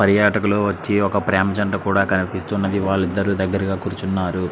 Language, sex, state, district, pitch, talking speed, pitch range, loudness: Telugu, male, Andhra Pradesh, Srikakulam, 100 Hz, 105 wpm, 95-100 Hz, -20 LUFS